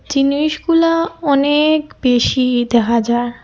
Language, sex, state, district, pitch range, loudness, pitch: Bengali, female, Assam, Hailakandi, 240-310 Hz, -15 LUFS, 280 Hz